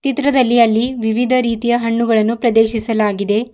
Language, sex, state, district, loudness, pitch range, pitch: Kannada, female, Karnataka, Bidar, -15 LUFS, 225-245 Hz, 235 Hz